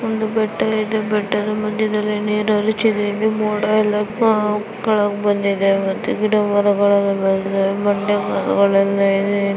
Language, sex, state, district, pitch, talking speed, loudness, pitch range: Kannada, female, Karnataka, Chamarajanagar, 210 Hz, 125 wpm, -18 LUFS, 200-215 Hz